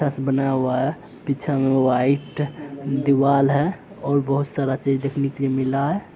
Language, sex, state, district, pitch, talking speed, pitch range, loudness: Hindi, male, Bihar, Araria, 140 Hz, 165 wpm, 135-140 Hz, -21 LUFS